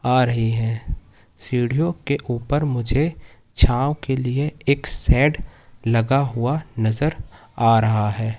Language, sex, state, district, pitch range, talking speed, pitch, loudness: Hindi, male, Madhya Pradesh, Katni, 115-140 Hz, 130 wpm, 125 Hz, -19 LUFS